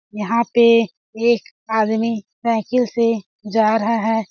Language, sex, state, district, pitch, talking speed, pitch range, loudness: Hindi, female, Chhattisgarh, Balrampur, 225 Hz, 140 wpm, 220-235 Hz, -18 LUFS